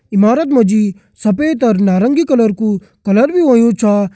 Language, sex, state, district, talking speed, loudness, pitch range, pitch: Kumaoni, male, Uttarakhand, Tehri Garhwal, 175 wpm, -13 LUFS, 205-255 Hz, 220 Hz